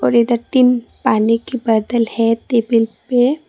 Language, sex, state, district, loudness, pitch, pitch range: Hindi, female, Tripura, Dhalai, -16 LUFS, 235 Hz, 230-250 Hz